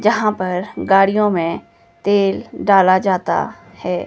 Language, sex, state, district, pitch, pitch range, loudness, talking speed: Hindi, female, Himachal Pradesh, Shimla, 195 Hz, 185-205 Hz, -16 LUFS, 120 wpm